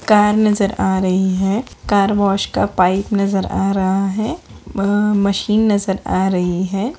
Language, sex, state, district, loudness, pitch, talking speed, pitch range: Hindi, female, Bihar, Bhagalpur, -17 LUFS, 200 Hz, 165 wpm, 190-210 Hz